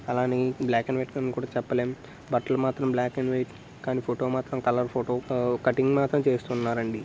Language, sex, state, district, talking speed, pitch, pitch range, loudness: Telugu, male, Andhra Pradesh, Srikakulam, 185 wpm, 130 Hz, 125-130 Hz, -27 LUFS